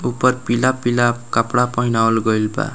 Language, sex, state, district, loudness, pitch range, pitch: Bhojpuri, male, Bihar, Muzaffarpur, -18 LUFS, 115-125 Hz, 120 Hz